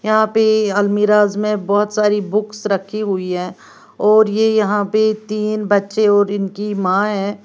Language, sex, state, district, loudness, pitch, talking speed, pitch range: Hindi, female, Uttar Pradesh, Lalitpur, -16 LUFS, 210 Hz, 160 wpm, 205-215 Hz